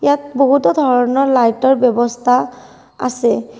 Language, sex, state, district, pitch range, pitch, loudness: Assamese, female, Assam, Kamrup Metropolitan, 240-275 Hz, 255 Hz, -14 LUFS